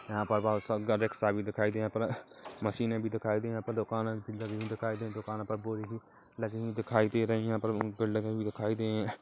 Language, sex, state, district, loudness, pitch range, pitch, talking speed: Hindi, male, Chhattisgarh, Kabirdham, -34 LUFS, 110-115 Hz, 110 Hz, 235 wpm